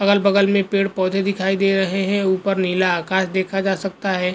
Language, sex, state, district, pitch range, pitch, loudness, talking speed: Hindi, male, Goa, North and South Goa, 190-195 Hz, 195 Hz, -19 LUFS, 195 wpm